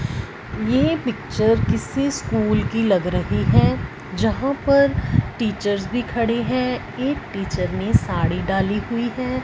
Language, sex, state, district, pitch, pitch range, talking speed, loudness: Hindi, female, Punjab, Fazilka, 230 Hz, 180-255 Hz, 135 wpm, -21 LUFS